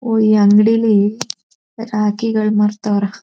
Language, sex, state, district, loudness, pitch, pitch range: Kannada, female, Karnataka, Chamarajanagar, -14 LUFS, 215 Hz, 210-225 Hz